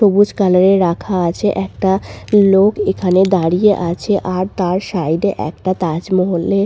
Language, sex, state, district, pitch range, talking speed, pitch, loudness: Bengali, female, West Bengal, Purulia, 180-200 Hz, 125 wpm, 190 Hz, -15 LUFS